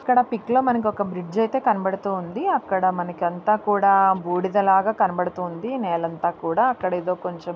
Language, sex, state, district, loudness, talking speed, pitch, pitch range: Telugu, female, Andhra Pradesh, Anantapur, -22 LUFS, 150 wpm, 195 Hz, 180-225 Hz